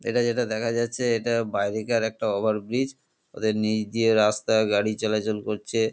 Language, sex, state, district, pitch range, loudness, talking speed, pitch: Bengali, male, West Bengal, North 24 Parganas, 110-115 Hz, -25 LUFS, 150 wpm, 110 Hz